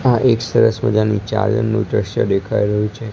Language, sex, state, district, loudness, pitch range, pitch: Gujarati, male, Gujarat, Gandhinagar, -17 LUFS, 105-115 Hz, 110 Hz